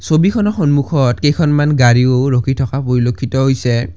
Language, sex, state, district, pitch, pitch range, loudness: Assamese, male, Assam, Kamrup Metropolitan, 135 Hz, 125-145 Hz, -14 LUFS